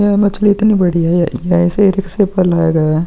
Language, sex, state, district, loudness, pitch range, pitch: Hindi, male, Bihar, Vaishali, -13 LUFS, 170-200 Hz, 180 Hz